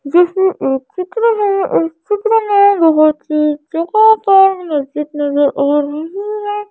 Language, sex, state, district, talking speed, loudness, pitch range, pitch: Hindi, female, Madhya Pradesh, Bhopal, 100 wpm, -14 LUFS, 300-410 Hz, 355 Hz